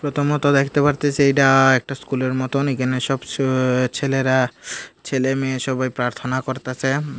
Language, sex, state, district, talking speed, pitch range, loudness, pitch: Bengali, male, Tripura, Unakoti, 125 wpm, 130-140 Hz, -19 LUFS, 135 Hz